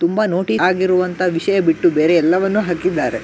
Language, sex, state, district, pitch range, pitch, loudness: Kannada, male, Karnataka, Gulbarga, 170-185 Hz, 180 Hz, -16 LUFS